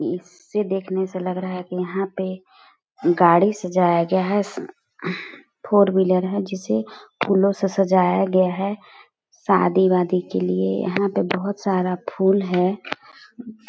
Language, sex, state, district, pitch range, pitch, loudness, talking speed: Hindi, female, Chhattisgarh, Balrampur, 180-200 Hz, 190 Hz, -21 LUFS, 135 wpm